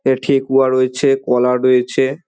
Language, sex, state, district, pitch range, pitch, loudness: Bengali, male, West Bengal, Dakshin Dinajpur, 125-135 Hz, 130 Hz, -15 LUFS